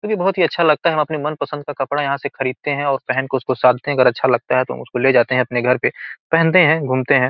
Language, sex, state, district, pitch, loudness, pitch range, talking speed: Hindi, male, Bihar, Gopalganj, 140 Hz, -17 LUFS, 130-155 Hz, 310 wpm